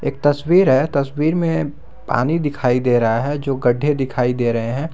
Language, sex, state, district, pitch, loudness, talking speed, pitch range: Hindi, male, Jharkhand, Garhwa, 140 Hz, -18 LUFS, 195 wpm, 125-150 Hz